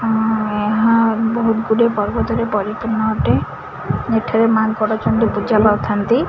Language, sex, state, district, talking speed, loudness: Odia, female, Odisha, Khordha, 115 wpm, -17 LUFS